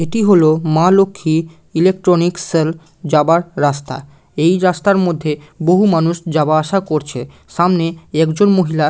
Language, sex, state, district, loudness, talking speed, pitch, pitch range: Bengali, male, West Bengal, Malda, -15 LUFS, 130 wpm, 165 Hz, 155-180 Hz